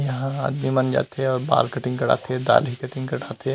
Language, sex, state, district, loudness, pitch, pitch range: Chhattisgarhi, male, Chhattisgarh, Rajnandgaon, -23 LUFS, 130 Hz, 130-135 Hz